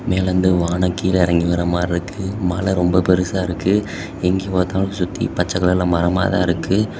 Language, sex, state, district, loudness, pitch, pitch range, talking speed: Tamil, male, Tamil Nadu, Kanyakumari, -18 LUFS, 90 Hz, 90-95 Hz, 145 wpm